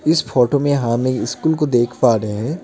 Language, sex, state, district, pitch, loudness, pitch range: Hindi, male, West Bengal, Alipurduar, 130 Hz, -17 LUFS, 120-150 Hz